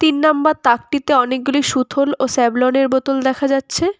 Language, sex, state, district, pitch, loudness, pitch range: Bengali, female, West Bengal, Cooch Behar, 275 Hz, -16 LUFS, 260-290 Hz